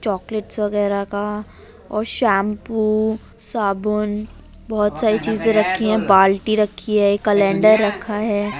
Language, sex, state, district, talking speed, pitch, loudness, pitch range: Hindi, female, Uttar Pradesh, Jyotiba Phule Nagar, 120 wpm, 210 Hz, -18 LUFS, 205-215 Hz